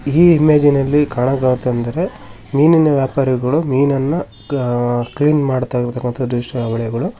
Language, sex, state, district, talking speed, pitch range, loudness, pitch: Kannada, male, Karnataka, Shimoga, 90 wpm, 120-145 Hz, -16 LUFS, 130 Hz